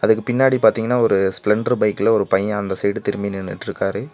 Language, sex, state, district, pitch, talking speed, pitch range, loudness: Tamil, male, Tamil Nadu, Nilgiris, 105 Hz, 175 wpm, 100-115 Hz, -19 LUFS